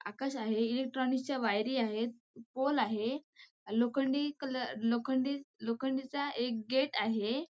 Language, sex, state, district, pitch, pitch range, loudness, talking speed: Marathi, female, Maharashtra, Sindhudurg, 255 Hz, 230-270 Hz, -34 LUFS, 110 wpm